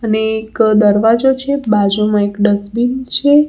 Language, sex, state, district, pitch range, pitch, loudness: Gujarati, female, Gujarat, Valsad, 210-255 Hz, 220 Hz, -13 LUFS